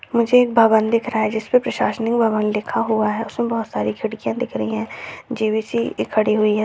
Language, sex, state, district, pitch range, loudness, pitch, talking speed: Hindi, female, Bihar, Darbhanga, 215-230 Hz, -19 LUFS, 220 Hz, 215 wpm